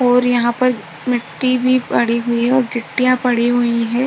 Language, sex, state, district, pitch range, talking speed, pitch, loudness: Hindi, female, Uttar Pradesh, Budaun, 235-255 Hz, 190 wpm, 245 Hz, -16 LUFS